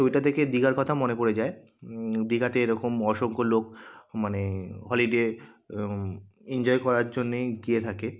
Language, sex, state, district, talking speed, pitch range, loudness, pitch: Bengali, male, West Bengal, Kolkata, 145 wpm, 110-125 Hz, -27 LUFS, 115 Hz